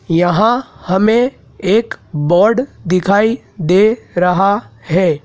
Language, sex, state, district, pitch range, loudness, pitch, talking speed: Hindi, male, Madhya Pradesh, Dhar, 180-225 Hz, -14 LUFS, 195 Hz, 90 wpm